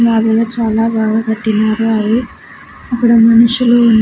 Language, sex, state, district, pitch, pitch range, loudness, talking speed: Telugu, female, Andhra Pradesh, Sri Satya Sai, 225 Hz, 220-235 Hz, -12 LUFS, 105 wpm